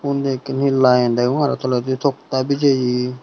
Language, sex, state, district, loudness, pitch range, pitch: Chakma, male, Tripura, Unakoti, -18 LUFS, 125-140 Hz, 130 Hz